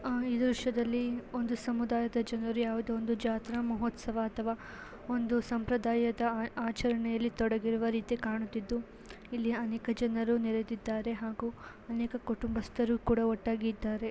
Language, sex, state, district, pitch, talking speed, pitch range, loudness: Kannada, female, Karnataka, Belgaum, 230 Hz, 115 wpm, 225-235 Hz, -33 LUFS